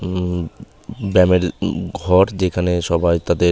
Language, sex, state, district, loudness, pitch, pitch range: Bengali, male, West Bengal, Malda, -18 LUFS, 90 Hz, 85-90 Hz